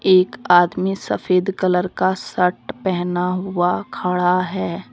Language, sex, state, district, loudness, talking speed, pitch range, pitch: Hindi, female, Jharkhand, Deoghar, -19 LUFS, 120 wpm, 180-185 Hz, 180 Hz